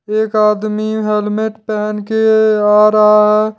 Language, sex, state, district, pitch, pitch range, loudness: Hindi, male, Jharkhand, Deoghar, 215 Hz, 210-215 Hz, -13 LUFS